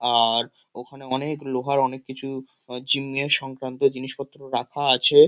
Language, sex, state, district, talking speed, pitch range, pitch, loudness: Bengali, male, West Bengal, Kolkata, 145 wpm, 125-140 Hz, 135 Hz, -23 LUFS